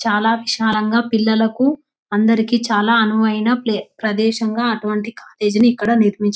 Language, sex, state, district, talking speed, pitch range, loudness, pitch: Telugu, female, Telangana, Nalgonda, 125 wpm, 215-230 Hz, -17 LUFS, 220 Hz